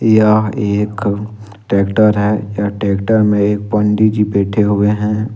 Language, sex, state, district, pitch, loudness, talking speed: Hindi, male, Jharkhand, Ranchi, 105 Hz, -14 LUFS, 145 wpm